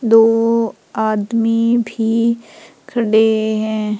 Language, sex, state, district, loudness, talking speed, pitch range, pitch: Hindi, female, Madhya Pradesh, Umaria, -16 LUFS, 75 wpm, 220-230 Hz, 225 Hz